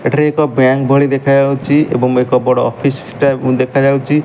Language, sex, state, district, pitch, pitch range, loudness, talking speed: Odia, male, Odisha, Malkangiri, 140 Hz, 130-140 Hz, -13 LUFS, 170 wpm